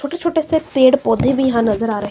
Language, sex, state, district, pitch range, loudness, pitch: Hindi, female, Himachal Pradesh, Shimla, 230-315 Hz, -16 LUFS, 265 Hz